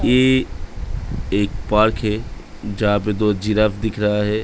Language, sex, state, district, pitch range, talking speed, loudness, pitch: Hindi, male, Uttar Pradesh, Budaun, 100-110 Hz, 150 wpm, -19 LUFS, 105 Hz